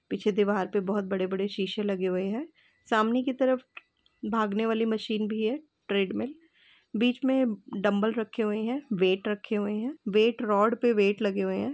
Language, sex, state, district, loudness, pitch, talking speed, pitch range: Hindi, female, Uttar Pradesh, Etah, -28 LUFS, 215 Hz, 185 wpm, 205-240 Hz